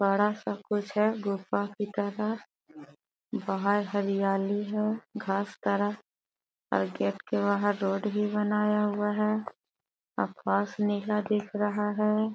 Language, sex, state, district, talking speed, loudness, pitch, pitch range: Magahi, female, Bihar, Gaya, 120 wpm, -29 LUFS, 205 Hz, 200-210 Hz